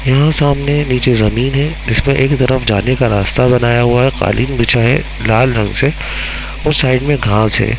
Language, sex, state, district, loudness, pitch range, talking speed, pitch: Hindi, male, Bihar, Muzaffarpur, -13 LUFS, 110-140 Hz, 200 wpm, 125 Hz